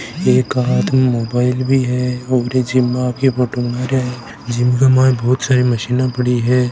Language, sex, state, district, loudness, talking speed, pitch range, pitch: Hindi, male, Rajasthan, Nagaur, -16 LUFS, 215 wpm, 120-130 Hz, 125 Hz